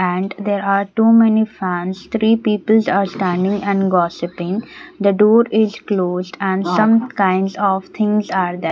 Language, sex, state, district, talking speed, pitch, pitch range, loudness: English, female, Odisha, Nuapada, 160 wpm, 200 Hz, 185-215 Hz, -17 LUFS